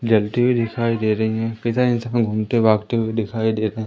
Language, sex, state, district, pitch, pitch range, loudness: Hindi, male, Madhya Pradesh, Umaria, 115 Hz, 110-115 Hz, -20 LUFS